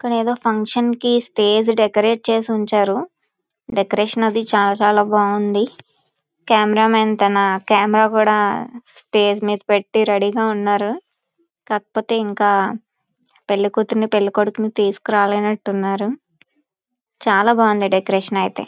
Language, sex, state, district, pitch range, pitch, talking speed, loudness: Telugu, female, Andhra Pradesh, Visakhapatnam, 205-230 Hz, 215 Hz, 115 wpm, -17 LUFS